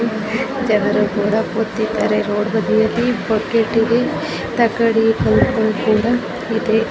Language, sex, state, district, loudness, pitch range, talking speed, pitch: Kannada, female, Karnataka, Bijapur, -17 LUFS, 220-230 Hz, 85 wpm, 225 Hz